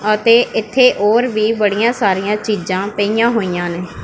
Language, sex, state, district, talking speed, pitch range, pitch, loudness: Punjabi, female, Punjab, Pathankot, 150 wpm, 200-230 Hz, 215 Hz, -15 LUFS